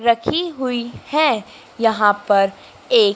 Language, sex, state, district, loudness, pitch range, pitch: Hindi, female, Madhya Pradesh, Dhar, -18 LUFS, 215-310 Hz, 235 Hz